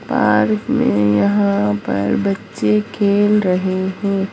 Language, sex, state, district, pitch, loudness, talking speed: Hindi, female, Bihar, Jahanabad, 110 Hz, -16 LUFS, 110 wpm